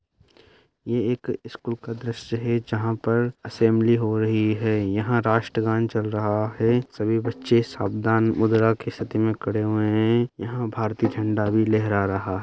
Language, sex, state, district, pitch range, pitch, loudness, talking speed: Hindi, male, Bihar, Madhepura, 110-115 Hz, 110 Hz, -23 LUFS, 170 wpm